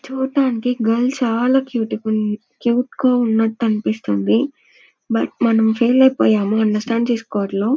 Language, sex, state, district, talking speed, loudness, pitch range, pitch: Telugu, female, Andhra Pradesh, Anantapur, 115 wpm, -18 LUFS, 215-250 Hz, 230 Hz